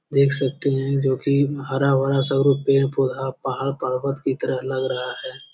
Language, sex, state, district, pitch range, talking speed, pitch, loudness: Hindi, male, Bihar, Jamui, 130-140 Hz, 150 wpm, 135 Hz, -22 LUFS